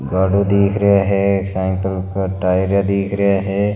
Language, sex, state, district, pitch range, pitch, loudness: Marwari, male, Rajasthan, Nagaur, 95-100 Hz, 100 Hz, -17 LUFS